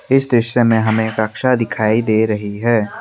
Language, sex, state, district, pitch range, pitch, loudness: Hindi, male, Assam, Kamrup Metropolitan, 110-120 Hz, 110 Hz, -16 LUFS